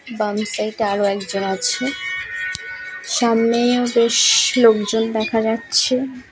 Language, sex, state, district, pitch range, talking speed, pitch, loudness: Bengali, female, West Bengal, Paschim Medinipur, 220-265 Hz, 125 wpm, 235 Hz, -18 LUFS